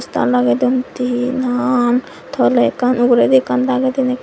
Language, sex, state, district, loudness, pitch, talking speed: Chakma, female, Tripura, Dhalai, -15 LUFS, 245 Hz, 130 wpm